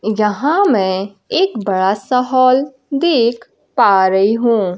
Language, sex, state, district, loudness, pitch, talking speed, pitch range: Hindi, female, Bihar, Kaimur, -15 LUFS, 215 Hz, 125 wpm, 195-255 Hz